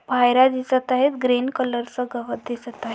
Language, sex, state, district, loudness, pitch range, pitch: Marathi, female, Maharashtra, Dhule, -21 LUFS, 240-255 Hz, 250 Hz